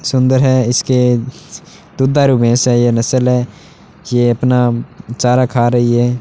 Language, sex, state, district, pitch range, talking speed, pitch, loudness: Hindi, male, Rajasthan, Bikaner, 120-130 Hz, 145 wpm, 125 Hz, -13 LUFS